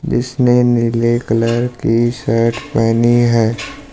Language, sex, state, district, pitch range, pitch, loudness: Hindi, male, Rajasthan, Jaipur, 115-120 Hz, 120 Hz, -14 LUFS